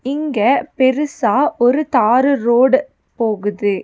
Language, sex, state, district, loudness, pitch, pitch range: Tamil, female, Tamil Nadu, Nilgiris, -15 LUFS, 260 Hz, 235-280 Hz